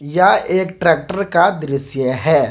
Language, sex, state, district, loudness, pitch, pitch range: Hindi, male, Jharkhand, Garhwa, -16 LUFS, 165 Hz, 140-185 Hz